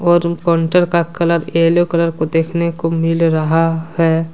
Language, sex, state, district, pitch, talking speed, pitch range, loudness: Hindi, male, Jharkhand, Deoghar, 165 Hz, 165 wpm, 165-170 Hz, -15 LUFS